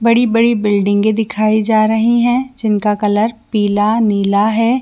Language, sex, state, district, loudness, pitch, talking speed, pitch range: Hindi, female, Jharkhand, Jamtara, -14 LUFS, 220 Hz, 150 wpm, 210-230 Hz